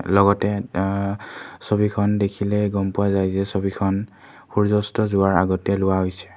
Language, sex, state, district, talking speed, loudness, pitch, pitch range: Assamese, male, Assam, Kamrup Metropolitan, 140 wpm, -21 LUFS, 100 Hz, 95-105 Hz